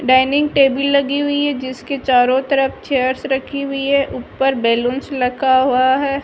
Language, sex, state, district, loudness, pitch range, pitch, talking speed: Hindi, female, Rajasthan, Barmer, -16 LUFS, 260-280 Hz, 270 Hz, 165 wpm